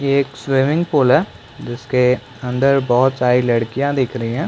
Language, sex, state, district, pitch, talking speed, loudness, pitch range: Hindi, male, Chhattisgarh, Bilaspur, 130 Hz, 185 wpm, -17 LUFS, 125-140 Hz